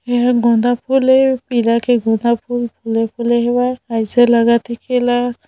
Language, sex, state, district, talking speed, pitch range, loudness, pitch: Hindi, female, Chhattisgarh, Bilaspur, 140 wpm, 235-245 Hz, -15 LUFS, 240 Hz